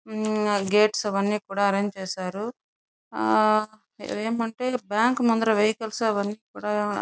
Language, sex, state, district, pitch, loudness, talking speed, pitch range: Telugu, female, Andhra Pradesh, Chittoor, 215 Hz, -25 LUFS, 145 wpm, 200-225 Hz